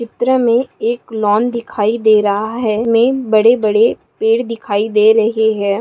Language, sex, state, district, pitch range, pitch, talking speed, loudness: Hindi, female, Maharashtra, Pune, 215-235 Hz, 225 Hz, 165 wpm, -14 LUFS